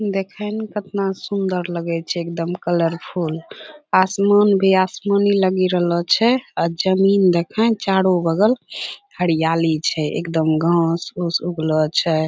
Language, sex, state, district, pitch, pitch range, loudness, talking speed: Angika, female, Bihar, Bhagalpur, 180 Hz, 165-200 Hz, -19 LUFS, 120 wpm